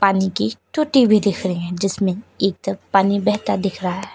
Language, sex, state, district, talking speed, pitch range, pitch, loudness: Hindi, female, Uttar Pradesh, Lucknow, 215 wpm, 185-200 Hz, 195 Hz, -19 LUFS